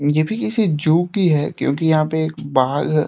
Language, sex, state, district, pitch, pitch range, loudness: Hindi, male, Uttar Pradesh, Deoria, 155 Hz, 150-165 Hz, -18 LUFS